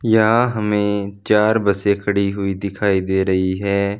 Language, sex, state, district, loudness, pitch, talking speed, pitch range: Hindi, male, Punjab, Fazilka, -18 LUFS, 100 Hz, 150 wpm, 100-105 Hz